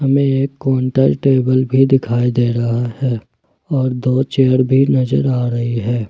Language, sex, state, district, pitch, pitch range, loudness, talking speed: Hindi, male, Jharkhand, Ranchi, 130 Hz, 120-135 Hz, -15 LUFS, 165 wpm